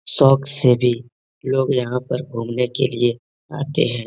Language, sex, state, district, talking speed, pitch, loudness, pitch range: Hindi, male, Uttar Pradesh, Etah, 160 wpm, 125 Hz, -19 LUFS, 120-135 Hz